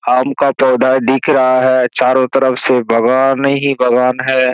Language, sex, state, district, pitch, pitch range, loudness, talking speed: Hindi, male, Bihar, Kishanganj, 130 Hz, 125-135 Hz, -12 LUFS, 170 wpm